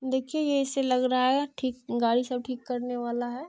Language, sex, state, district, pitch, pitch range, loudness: Maithili, female, Bihar, Madhepura, 255 Hz, 245-265 Hz, -28 LUFS